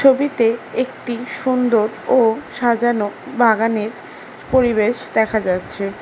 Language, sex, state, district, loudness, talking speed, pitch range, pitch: Bengali, female, West Bengal, Alipurduar, -18 LUFS, 90 wpm, 220-250 Hz, 235 Hz